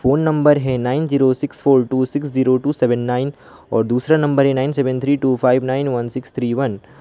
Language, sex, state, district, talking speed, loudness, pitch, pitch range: Hindi, male, West Bengal, Alipurduar, 240 wpm, -17 LUFS, 130 Hz, 125-145 Hz